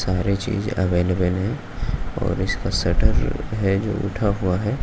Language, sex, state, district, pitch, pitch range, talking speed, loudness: Hindi, male, Maharashtra, Aurangabad, 95 Hz, 90-105 Hz, 150 wpm, -23 LUFS